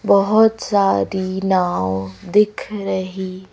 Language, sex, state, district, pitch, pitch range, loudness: Hindi, female, Madhya Pradesh, Bhopal, 190 Hz, 185-200 Hz, -18 LUFS